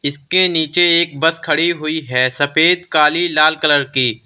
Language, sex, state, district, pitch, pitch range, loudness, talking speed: Hindi, male, Uttar Pradesh, Lalitpur, 155 Hz, 145-170 Hz, -14 LUFS, 170 wpm